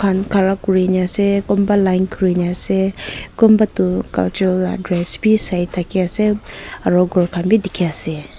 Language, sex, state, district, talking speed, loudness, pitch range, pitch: Nagamese, female, Nagaland, Kohima, 170 wpm, -16 LUFS, 180-200 Hz, 185 Hz